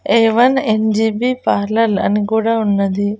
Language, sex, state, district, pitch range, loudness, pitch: Telugu, female, Andhra Pradesh, Annamaya, 205-230 Hz, -15 LUFS, 220 Hz